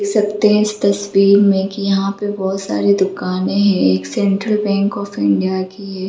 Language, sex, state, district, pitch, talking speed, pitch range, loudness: Hindi, female, Jharkhand, Jamtara, 200 Hz, 185 wpm, 190-200 Hz, -16 LUFS